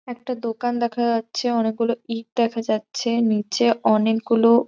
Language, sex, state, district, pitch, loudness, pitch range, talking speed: Bengali, female, West Bengal, Jhargram, 230 Hz, -22 LUFS, 225-240 Hz, 130 wpm